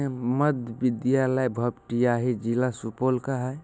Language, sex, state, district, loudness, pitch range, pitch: Maithili, male, Bihar, Supaul, -26 LUFS, 120-130 Hz, 125 Hz